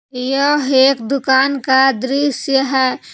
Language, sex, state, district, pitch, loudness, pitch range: Hindi, female, Jharkhand, Palamu, 270 Hz, -15 LUFS, 265-275 Hz